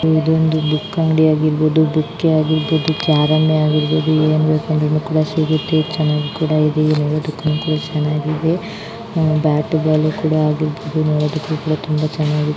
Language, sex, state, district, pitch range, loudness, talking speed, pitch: Kannada, female, Karnataka, Raichur, 150-155 Hz, -17 LUFS, 130 wpm, 155 Hz